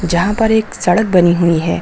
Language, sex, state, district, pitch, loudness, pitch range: Hindi, female, Uttar Pradesh, Lucknow, 180 Hz, -13 LUFS, 175-220 Hz